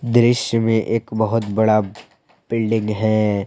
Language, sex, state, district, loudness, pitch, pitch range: Hindi, male, Jharkhand, Palamu, -18 LUFS, 110 Hz, 110-115 Hz